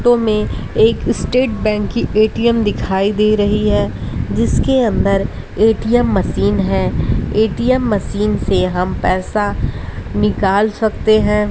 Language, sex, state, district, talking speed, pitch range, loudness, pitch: Hindi, female, Uttar Pradesh, Ghazipur, 125 wpm, 195-220 Hz, -16 LUFS, 210 Hz